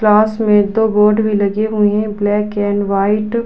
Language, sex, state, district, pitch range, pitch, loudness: Hindi, female, Uttar Pradesh, Budaun, 205-215 Hz, 210 Hz, -14 LUFS